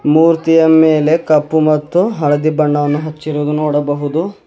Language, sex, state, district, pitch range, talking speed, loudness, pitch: Kannada, male, Karnataka, Bidar, 150-160 Hz, 105 wpm, -13 LUFS, 155 Hz